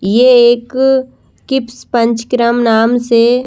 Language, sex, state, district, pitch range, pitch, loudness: Hindi, female, Madhya Pradesh, Bhopal, 235-250 Hz, 240 Hz, -11 LUFS